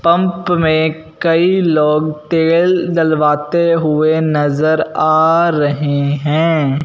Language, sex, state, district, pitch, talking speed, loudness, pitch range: Hindi, male, Punjab, Fazilka, 160 Hz, 95 wpm, -14 LUFS, 150-170 Hz